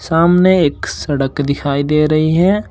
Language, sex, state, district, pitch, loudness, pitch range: Hindi, male, Uttar Pradesh, Shamli, 150 Hz, -14 LUFS, 145-175 Hz